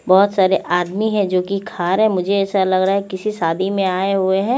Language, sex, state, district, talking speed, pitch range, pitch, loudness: Hindi, female, Chandigarh, Chandigarh, 210 wpm, 185-200 Hz, 195 Hz, -17 LUFS